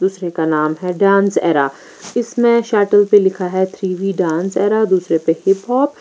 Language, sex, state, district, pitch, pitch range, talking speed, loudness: Hindi, female, Bihar, Patna, 190 Hz, 175-205 Hz, 200 wpm, -15 LUFS